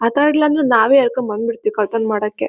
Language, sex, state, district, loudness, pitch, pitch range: Kannada, female, Karnataka, Bellary, -16 LUFS, 230 Hz, 215-275 Hz